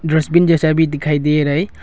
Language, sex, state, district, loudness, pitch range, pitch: Hindi, male, Arunachal Pradesh, Longding, -15 LUFS, 150-160 Hz, 155 Hz